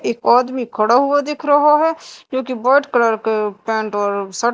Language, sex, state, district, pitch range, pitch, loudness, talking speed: Hindi, female, Madhya Pradesh, Dhar, 220-285 Hz, 245 Hz, -16 LUFS, 210 wpm